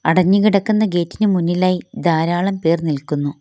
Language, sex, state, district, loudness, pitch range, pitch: Malayalam, female, Kerala, Kollam, -17 LUFS, 160-195 Hz, 175 Hz